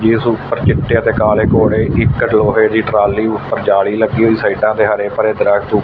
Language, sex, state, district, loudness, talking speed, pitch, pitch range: Punjabi, male, Punjab, Fazilka, -13 LUFS, 195 wpm, 110 Hz, 105-115 Hz